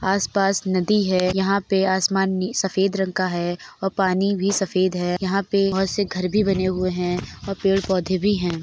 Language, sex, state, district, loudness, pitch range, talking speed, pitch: Hindi, female, Uttar Pradesh, Etah, -21 LUFS, 185-195 Hz, 210 wpm, 190 Hz